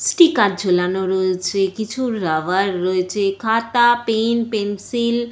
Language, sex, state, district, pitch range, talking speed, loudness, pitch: Bengali, female, West Bengal, Jalpaiguri, 185-235 Hz, 115 wpm, -18 LUFS, 205 Hz